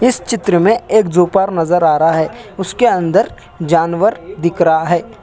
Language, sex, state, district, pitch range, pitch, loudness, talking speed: Hindi, male, Bihar, Samastipur, 165-195 Hz, 175 Hz, -14 LUFS, 185 wpm